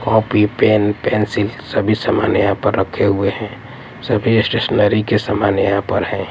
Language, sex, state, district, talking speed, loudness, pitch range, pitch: Hindi, male, Delhi, New Delhi, 160 wpm, -16 LUFS, 100-115 Hz, 105 Hz